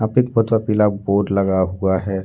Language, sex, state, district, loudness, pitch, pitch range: Hindi, male, Jharkhand, Ranchi, -18 LUFS, 100 Hz, 95-110 Hz